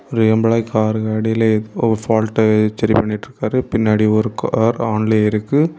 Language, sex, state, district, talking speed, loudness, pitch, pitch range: Tamil, male, Tamil Nadu, Kanyakumari, 135 wpm, -16 LUFS, 110 Hz, 110-115 Hz